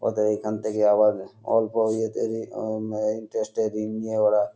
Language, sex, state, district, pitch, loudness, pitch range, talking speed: Bengali, male, West Bengal, North 24 Parganas, 110 Hz, -25 LUFS, 105-110 Hz, 170 wpm